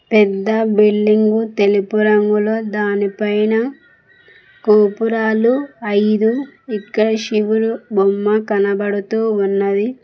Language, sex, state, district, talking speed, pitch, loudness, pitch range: Telugu, female, Telangana, Mahabubabad, 70 wpm, 215 Hz, -16 LUFS, 205-225 Hz